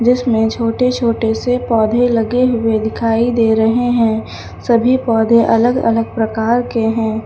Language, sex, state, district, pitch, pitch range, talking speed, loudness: Hindi, female, Uttar Pradesh, Lucknow, 230 Hz, 225-245 Hz, 150 wpm, -14 LUFS